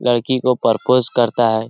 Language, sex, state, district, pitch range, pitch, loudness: Hindi, male, Bihar, Lakhisarai, 115-125 Hz, 120 Hz, -15 LUFS